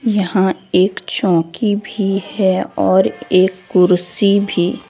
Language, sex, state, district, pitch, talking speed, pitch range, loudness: Hindi, female, Jharkhand, Deoghar, 190 Hz, 110 wpm, 180-200 Hz, -15 LUFS